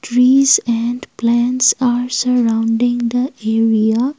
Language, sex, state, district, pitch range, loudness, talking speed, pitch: English, female, Assam, Kamrup Metropolitan, 230-250 Hz, -15 LUFS, 100 wpm, 240 Hz